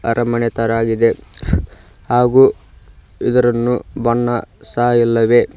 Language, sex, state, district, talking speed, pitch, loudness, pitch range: Kannada, male, Karnataka, Koppal, 85 wpm, 115 Hz, -16 LUFS, 100-120 Hz